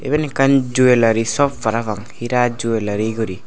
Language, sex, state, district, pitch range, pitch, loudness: Chakma, male, Tripura, Unakoti, 110-135 Hz, 120 Hz, -17 LUFS